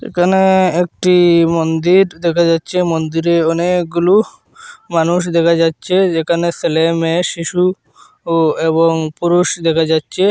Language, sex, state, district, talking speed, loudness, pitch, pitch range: Bengali, male, Assam, Hailakandi, 110 wpm, -14 LUFS, 170 Hz, 165-180 Hz